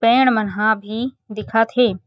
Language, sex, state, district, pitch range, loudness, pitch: Chhattisgarhi, female, Chhattisgarh, Jashpur, 215-245 Hz, -18 LUFS, 225 Hz